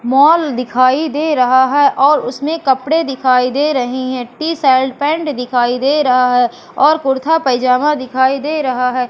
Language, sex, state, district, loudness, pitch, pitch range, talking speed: Hindi, female, Madhya Pradesh, Katni, -14 LUFS, 265 Hz, 255-295 Hz, 170 wpm